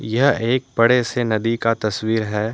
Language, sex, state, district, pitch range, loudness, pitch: Hindi, male, Jharkhand, Deoghar, 110-120 Hz, -19 LUFS, 115 Hz